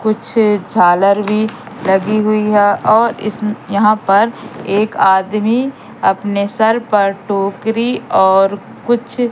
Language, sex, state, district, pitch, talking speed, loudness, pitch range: Hindi, female, Madhya Pradesh, Katni, 210 Hz, 115 wpm, -14 LUFS, 200-220 Hz